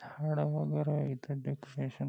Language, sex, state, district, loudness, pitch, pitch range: Marathi, male, Maharashtra, Nagpur, -35 LUFS, 145 Hz, 110-150 Hz